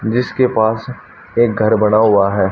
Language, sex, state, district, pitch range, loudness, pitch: Hindi, male, Haryana, Rohtak, 105-120 Hz, -14 LUFS, 110 Hz